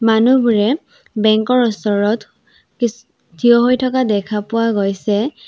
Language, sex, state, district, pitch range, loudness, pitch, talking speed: Assamese, female, Assam, Sonitpur, 210-245 Hz, -16 LUFS, 230 Hz, 120 wpm